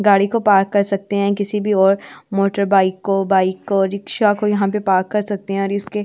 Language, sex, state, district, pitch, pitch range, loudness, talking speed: Hindi, female, Delhi, New Delhi, 200 Hz, 195-205 Hz, -17 LUFS, 250 wpm